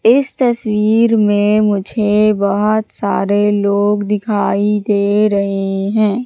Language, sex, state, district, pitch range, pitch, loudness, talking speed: Hindi, female, Madhya Pradesh, Katni, 205-215 Hz, 210 Hz, -14 LUFS, 105 wpm